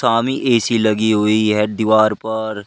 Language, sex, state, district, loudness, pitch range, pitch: Hindi, male, Uttar Pradesh, Shamli, -16 LUFS, 105-115 Hz, 110 Hz